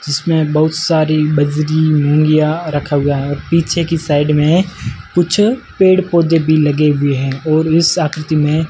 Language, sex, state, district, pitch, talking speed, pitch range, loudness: Hindi, male, Rajasthan, Jaisalmer, 155 Hz, 165 wpm, 150-165 Hz, -14 LUFS